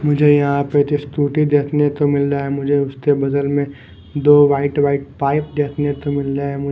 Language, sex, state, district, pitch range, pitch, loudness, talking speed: Hindi, male, Maharashtra, Mumbai Suburban, 140-145 Hz, 145 Hz, -17 LUFS, 205 wpm